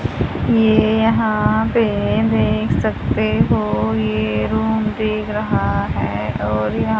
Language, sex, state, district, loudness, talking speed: Hindi, female, Haryana, Jhajjar, -18 LUFS, 110 wpm